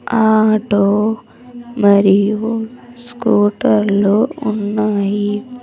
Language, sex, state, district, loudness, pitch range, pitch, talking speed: Telugu, female, Andhra Pradesh, Sri Satya Sai, -15 LUFS, 205-235 Hz, 215 Hz, 45 wpm